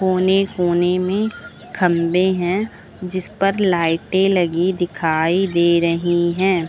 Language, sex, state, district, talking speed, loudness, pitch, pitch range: Hindi, female, Uttar Pradesh, Lucknow, 115 wpm, -18 LUFS, 180 Hz, 170-190 Hz